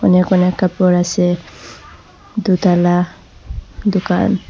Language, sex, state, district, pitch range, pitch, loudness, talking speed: Bengali, female, Assam, Hailakandi, 180-185 Hz, 180 Hz, -15 LUFS, 80 wpm